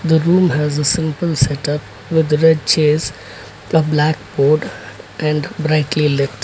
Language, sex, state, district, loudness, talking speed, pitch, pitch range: English, male, Karnataka, Bangalore, -16 LUFS, 140 wpm, 150 Hz, 145-160 Hz